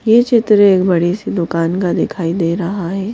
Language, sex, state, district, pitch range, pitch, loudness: Hindi, female, Madhya Pradesh, Bhopal, 175-205 Hz, 180 Hz, -14 LUFS